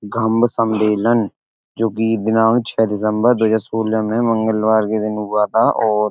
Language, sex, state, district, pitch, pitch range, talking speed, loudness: Hindi, male, Uttar Pradesh, Etah, 110 Hz, 110-115 Hz, 175 wpm, -17 LUFS